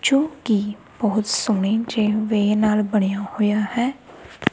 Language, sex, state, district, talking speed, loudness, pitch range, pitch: Punjabi, female, Punjab, Kapurthala, 135 wpm, -21 LUFS, 210-225 Hz, 215 Hz